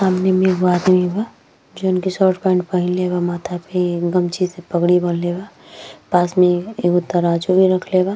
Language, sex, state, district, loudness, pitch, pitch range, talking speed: Bhojpuri, female, Uttar Pradesh, Ghazipur, -17 LUFS, 180 Hz, 175-185 Hz, 185 wpm